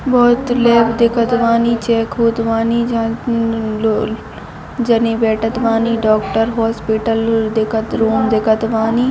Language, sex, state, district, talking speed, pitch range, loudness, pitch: Hindi, female, Chhattisgarh, Bilaspur, 120 wpm, 225-235 Hz, -15 LUFS, 225 Hz